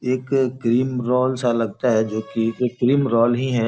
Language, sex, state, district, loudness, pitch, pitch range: Hindi, male, Bihar, Gopalganj, -20 LUFS, 125 Hz, 115-130 Hz